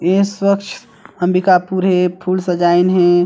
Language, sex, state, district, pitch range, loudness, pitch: Chhattisgarhi, male, Chhattisgarh, Sarguja, 180-195 Hz, -15 LUFS, 185 Hz